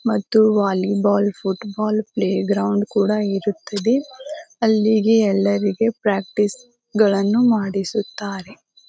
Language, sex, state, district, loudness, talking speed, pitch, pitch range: Kannada, female, Karnataka, Bijapur, -19 LUFS, 90 wpm, 210 Hz, 200-225 Hz